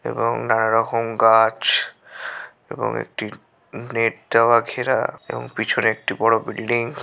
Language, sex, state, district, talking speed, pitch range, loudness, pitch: Bengali, male, West Bengal, Malda, 120 wpm, 110-115 Hz, -20 LUFS, 115 Hz